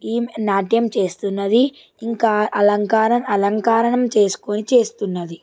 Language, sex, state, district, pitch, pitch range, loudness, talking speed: Telugu, female, Telangana, Nalgonda, 215 Hz, 200-230 Hz, -18 LUFS, 100 wpm